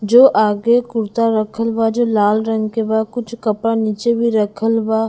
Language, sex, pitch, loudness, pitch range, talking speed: Bhojpuri, female, 225 Hz, -16 LUFS, 215-230 Hz, 200 wpm